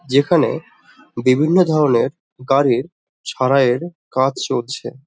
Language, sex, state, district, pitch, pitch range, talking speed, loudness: Bengali, male, West Bengal, Dakshin Dinajpur, 135 Hz, 130-155 Hz, 70 wpm, -17 LUFS